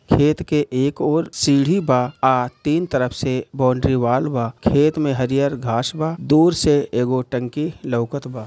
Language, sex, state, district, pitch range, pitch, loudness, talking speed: Bhojpuri, male, Bihar, Gopalganj, 125-150 Hz, 135 Hz, -19 LUFS, 175 wpm